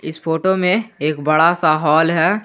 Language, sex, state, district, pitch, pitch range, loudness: Hindi, male, Jharkhand, Garhwa, 160 Hz, 155-180 Hz, -16 LUFS